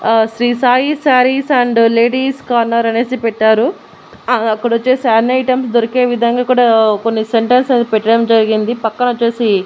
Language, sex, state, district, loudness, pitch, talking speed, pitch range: Telugu, female, Andhra Pradesh, Annamaya, -13 LUFS, 235 Hz, 130 wpm, 225-250 Hz